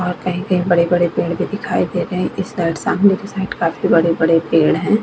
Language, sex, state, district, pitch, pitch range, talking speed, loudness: Hindi, female, Bihar, Vaishali, 180 Hz, 165-195 Hz, 225 wpm, -17 LUFS